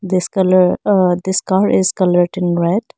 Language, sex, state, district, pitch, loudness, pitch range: English, female, Arunachal Pradesh, Lower Dibang Valley, 185 Hz, -15 LUFS, 180-190 Hz